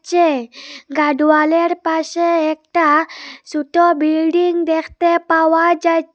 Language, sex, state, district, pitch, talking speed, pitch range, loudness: Bengali, female, Assam, Hailakandi, 325 Hz, 95 wpm, 305-340 Hz, -15 LUFS